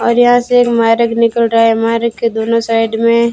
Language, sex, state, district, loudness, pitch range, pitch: Hindi, female, Rajasthan, Bikaner, -12 LUFS, 230-235 Hz, 230 Hz